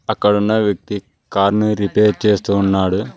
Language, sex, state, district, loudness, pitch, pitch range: Telugu, male, Telangana, Mahabubabad, -16 LUFS, 105 Hz, 100-105 Hz